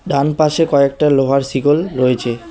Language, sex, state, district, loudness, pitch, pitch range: Bengali, male, West Bengal, Alipurduar, -15 LUFS, 140 Hz, 135-150 Hz